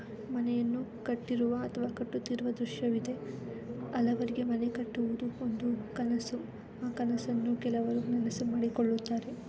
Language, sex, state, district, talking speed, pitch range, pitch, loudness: Kannada, female, Karnataka, Bellary, 100 wpm, 235-245 Hz, 240 Hz, -34 LUFS